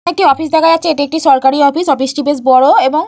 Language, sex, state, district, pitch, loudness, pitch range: Bengali, female, West Bengal, Purulia, 290 Hz, -11 LUFS, 275-325 Hz